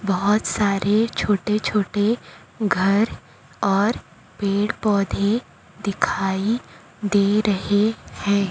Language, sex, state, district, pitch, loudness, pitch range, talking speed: Hindi, female, Chhattisgarh, Raipur, 205 Hz, -21 LUFS, 200-215 Hz, 85 wpm